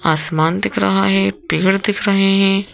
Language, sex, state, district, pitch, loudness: Hindi, female, Madhya Pradesh, Bhopal, 165 Hz, -16 LUFS